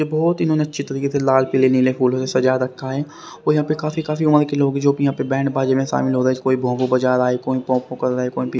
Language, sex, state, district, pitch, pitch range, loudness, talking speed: Hindi, male, Haryana, Rohtak, 130 Hz, 130-145 Hz, -19 LUFS, 280 wpm